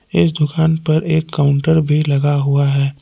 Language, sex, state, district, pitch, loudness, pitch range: Hindi, male, Jharkhand, Palamu, 150 Hz, -15 LUFS, 140-160 Hz